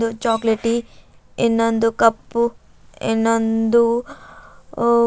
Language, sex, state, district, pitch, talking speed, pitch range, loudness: Kannada, female, Karnataka, Bidar, 230 Hz, 60 wpm, 225-235 Hz, -19 LUFS